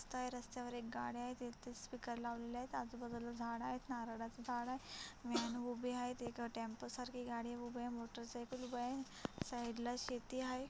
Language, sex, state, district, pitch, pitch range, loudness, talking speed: Marathi, female, Maharashtra, Solapur, 240 Hz, 235-250 Hz, -46 LUFS, 150 wpm